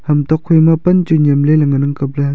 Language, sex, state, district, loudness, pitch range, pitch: Wancho, male, Arunachal Pradesh, Longding, -12 LUFS, 140-160 Hz, 150 Hz